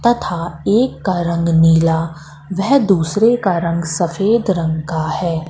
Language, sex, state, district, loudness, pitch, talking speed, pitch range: Hindi, female, Madhya Pradesh, Katni, -16 LUFS, 170 Hz, 140 wpm, 165-200 Hz